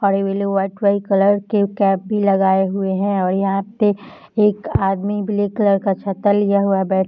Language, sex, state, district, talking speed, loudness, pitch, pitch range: Hindi, female, Bihar, Darbhanga, 210 wpm, -18 LUFS, 200 Hz, 195-205 Hz